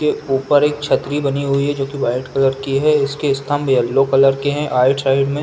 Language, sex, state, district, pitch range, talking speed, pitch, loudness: Hindi, male, Uttar Pradesh, Jalaun, 135-145 Hz, 255 wpm, 140 Hz, -17 LUFS